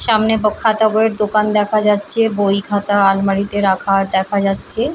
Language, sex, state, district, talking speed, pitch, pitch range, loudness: Bengali, female, West Bengal, Paschim Medinipur, 160 wpm, 205 Hz, 195-215 Hz, -15 LUFS